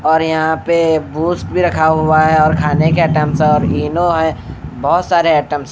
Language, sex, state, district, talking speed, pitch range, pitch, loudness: Hindi, male, Bihar, Katihar, 200 wpm, 155-165 Hz, 160 Hz, -13 LUFS